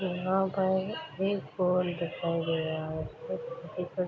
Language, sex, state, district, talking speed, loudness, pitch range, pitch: Hindi, female, Bihar, Darbhanga, 130 wpm, -31 LUFS, 165-190 Hz, 180 Hz